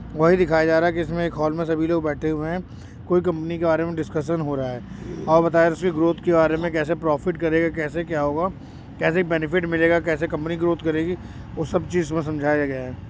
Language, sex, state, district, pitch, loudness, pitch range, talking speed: Hindi, male, Uttar Pradesh, Jyotiba Phule Nagar, 165 Hz, -22 LUFS, 155-170 Hz, 225 wpm